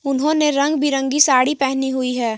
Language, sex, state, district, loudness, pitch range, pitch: Hindi, female, Jharkhand, Garhwa, -17 LUFS, 260-290 Hz, 270 Hz